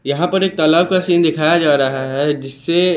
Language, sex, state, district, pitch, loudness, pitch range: Hindi, male, Chandigarh, Chandigarh, 160 Hz, -15 LUFS, 140-175 Hz